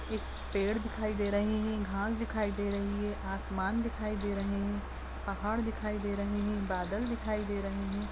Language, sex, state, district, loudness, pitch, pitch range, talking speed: Hindi, female, Maharashtra, Dhule, -34 LUFS, 205 Hz, 200-215 Hz, 190 wpm